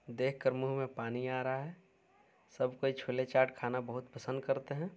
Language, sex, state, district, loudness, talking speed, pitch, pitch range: Hindi, male, Bihar, Saran, -36 LUFS, 205 wpm, 130 Hz, 125-135 Hz